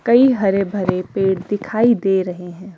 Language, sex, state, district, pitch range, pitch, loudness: Hindi, female, Himachal Pradesh, Shimla, 185-220 Hz, 195 Hz, -17 LUFS